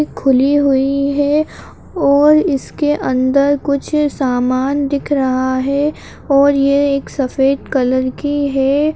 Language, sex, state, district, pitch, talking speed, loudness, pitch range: Kumaoni, female, Uttarakhand, Uttarkashi, 280 Hz, 120 wpm, -15 LUFS, 265-290 Hz